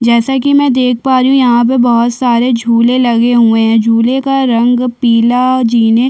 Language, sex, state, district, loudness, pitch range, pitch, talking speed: Hindi, female, Chhattisgarh, Sukma, -10 LUFS, 235-255 Hz, 245 Hz, 205 wpm